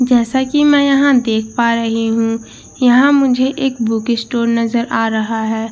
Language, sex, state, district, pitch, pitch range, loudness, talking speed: Hindi, female, Bihar, Katihar, 235 Hz, 225-265 Hz, -14 LUFS, 190 wpm